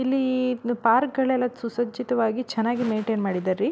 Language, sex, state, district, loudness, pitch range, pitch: Kannada, female, Karnataka, Belgaum, -24 LUFS, 225-255 Hz, 240 Hz